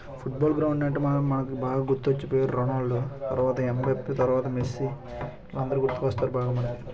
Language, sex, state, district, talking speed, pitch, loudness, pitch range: Telugu, male, Andhra Pradesh, Chittoor, 145 wpm, 130 Hz, -27 LUFS, 125-135 Hz